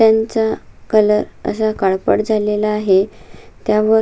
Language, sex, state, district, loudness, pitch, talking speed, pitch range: Marathi, female, Maharashtra, Sindhudurg, -16 LUFS, 215 Hz, 105 wpm, 210-220 Hz